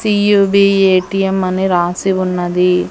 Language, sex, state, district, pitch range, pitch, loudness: Telugu, female, Andhra Pradesh, Annamaya, 180-195 Hz, 190 Hz, -13 LUFS